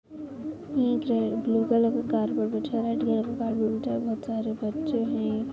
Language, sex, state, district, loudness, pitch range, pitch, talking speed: Hindi, female, Uttar Pradesh, Budaun, -27 LUFS, 225-255 Hz, 230 Hz, 195 wpm